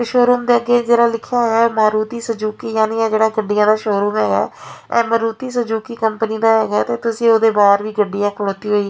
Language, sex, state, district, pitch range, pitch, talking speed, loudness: Punjabi, female, Punjab, Fazilka, 215-235 Hz, 225 Hz, 190 wpm, -16 LUFS